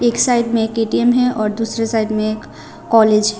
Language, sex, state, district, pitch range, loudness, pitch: Hindi, female, Tripura, Unakoti, 215-235 Hz, -16 LUFS, 225 Hz